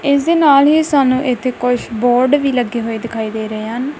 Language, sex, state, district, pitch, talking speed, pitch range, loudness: Punjabi, female, Punjab, Kapurthala, 250 Hz, 225 wpm, 230-280 Hz, -15 LUFS